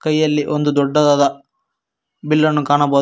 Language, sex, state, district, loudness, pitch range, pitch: Kannada, male, Karnataka, Koppal, -16 LUFS, 145-155 Hz, 150 Hz